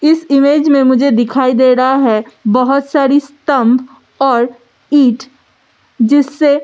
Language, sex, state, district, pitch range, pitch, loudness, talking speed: Hindi, female, Delhi, New Delhi, 255-285 Hz, 270 Hz, -11 LUFS, 135 wpm